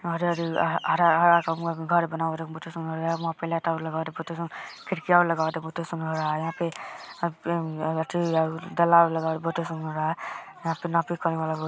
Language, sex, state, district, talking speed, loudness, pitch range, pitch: Hindi, female, Bihar, Araria, 55 wpm, -26 LUFS, 160-170 Hz, 165 Hz